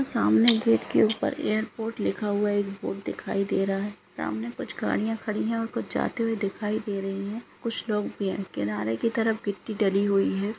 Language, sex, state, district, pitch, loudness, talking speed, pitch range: Hindi, female, Andhra Pradesh, Anantapur, 205 Hz, -27 LUFS, 215 wpm, 195-220 Hz